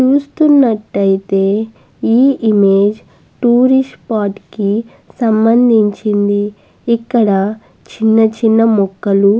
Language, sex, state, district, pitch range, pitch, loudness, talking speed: Telugu, female, Andhra Pradesh, Guntur, 205-235 Hz, 220 Hz, -13 LUFS, 75 wpm